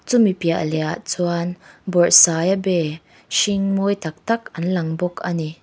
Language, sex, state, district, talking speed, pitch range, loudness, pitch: Mizo, female, Mizoram, Aizawl, 140 wpm, 165-195 Hz, -19 LUFS, 175 Hz